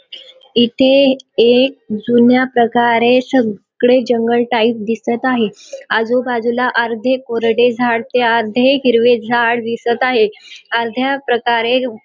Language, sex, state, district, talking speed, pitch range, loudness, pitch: Marathi, female, Maharashtra, Dhule, 110 wpm, 235-255 Hz, -14 LUFS, 240 Hz